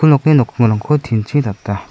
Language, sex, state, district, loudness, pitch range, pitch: Garo, male, Meghalaya, South Garo Hills, -15 LUFS, 110-145 Hz, 125 Hz